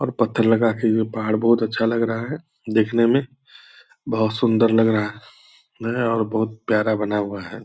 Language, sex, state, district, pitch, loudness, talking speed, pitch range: Hindi, male, Bihar, Purnia, 115 Hz, -21 LUFS, 195 wpm, 110-115 Hz